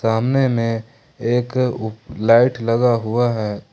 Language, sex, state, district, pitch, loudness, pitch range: Hindi, male, Jharkhand, Ranchi, 115 Hz, -18 LUFS, 110-125 Hz